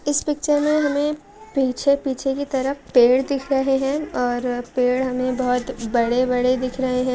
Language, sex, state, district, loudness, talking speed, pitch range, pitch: Hindi, female, Andhra Pradesh, Visakhapatnam, -21 LUFS, 185 wpm, 250-285 Hz, 265 Hz